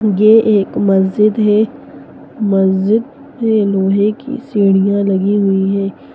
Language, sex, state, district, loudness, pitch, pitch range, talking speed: Hindi, female, Bihar, East Champaran, -13 LUFS, 205 Hz, 195-220 Hz, 115 wpm